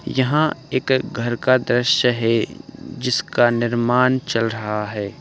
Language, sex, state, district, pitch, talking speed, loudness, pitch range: Hindi, male, Uttar Pradesh, Ghazipur, 120 Hz, 125 wpm, -19 LUFS, 115-130 Hz